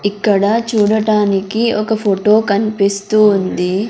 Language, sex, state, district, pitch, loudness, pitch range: Telugu, female, Andhra Pradesh, Sri Satya Sai, 210 Hz, -14 LUFS, 200-220 Hz